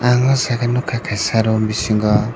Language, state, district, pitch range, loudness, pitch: Kokborok, Tripura, Dhalai, 110-125 Hz, -17 LUFS, 115 Hz